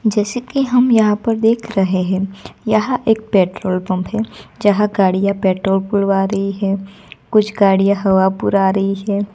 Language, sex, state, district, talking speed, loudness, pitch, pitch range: Hindi, female, Gujarat, Gandhinagar, 160 wpm, -16 LUFS, 200 Hz, 195-215 Hz